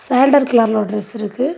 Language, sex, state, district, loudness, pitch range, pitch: Tamil, female, Tamil Nadu, Kanyakumari, -15 LUFS, 215-265 Hz, 235 Hz